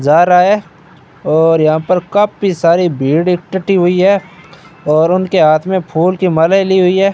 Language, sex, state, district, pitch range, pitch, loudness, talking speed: Hindi, male, Rajasthan, Bikaner, 165-190 Hz, 180 Hz, -12 LUFS, 185 wpm